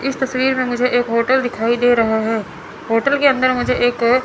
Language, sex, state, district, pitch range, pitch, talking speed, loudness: Hindi, female, Chandigarh, Chandigarh, 230-260 Hz, 245 Hz, 210 wpm, -16 LUFS